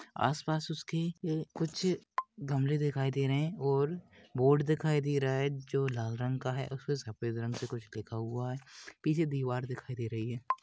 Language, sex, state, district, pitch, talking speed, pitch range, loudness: Hindi, male, Maharashtra, Pune, 135 Hz, 190 wpm, 125-155 Hz, -34 LUFS